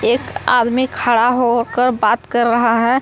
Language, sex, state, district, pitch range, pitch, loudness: Hindi, female, Jharkhand, Palamu, 235-250 Hz, 240 Hz, -15 LUFS